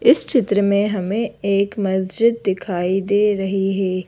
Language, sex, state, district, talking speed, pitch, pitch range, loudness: Hindi, female, Madhya Pradesh, Bhopal, 145 wpm, 200 Hz, 190-205 Hz, -19 LUFS